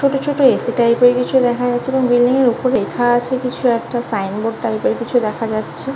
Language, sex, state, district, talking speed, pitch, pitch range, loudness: Bengali, female, West Bengal, North 24 Parganas, 230 wpm, 245 Hz, 235-255 Hz, -16 LUFS